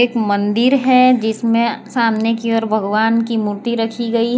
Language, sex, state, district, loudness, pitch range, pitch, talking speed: Hindi, female, Gujarat, Valsad, -16 LUFS, 220-235 Hz, 230 Hz, 165 wpm